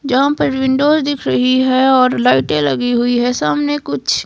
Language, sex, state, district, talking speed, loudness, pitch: Hindi, female, Himachal Pradesh, Shimla, 185 wpm, -14 LUFS, 250 Hz